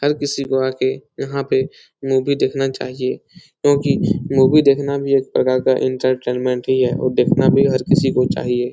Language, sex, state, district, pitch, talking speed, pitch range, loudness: Hindi, male, Bihar, Supaul, 135 Hz, 185 wpm, 130-140 Hz, -17 LUFS